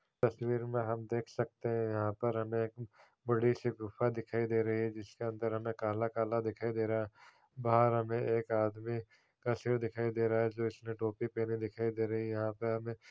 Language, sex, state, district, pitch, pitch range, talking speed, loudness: Hindi, male, Chhattisgarh, Raigarh, 115 Hz, 110-115 Hz, 200 wpm, -35 LUFS